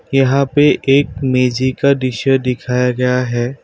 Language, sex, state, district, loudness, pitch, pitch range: Hindi, male, Assam, Kamrup Metropolitan, -15 LUFS, 130 Hz, 125-135 Hz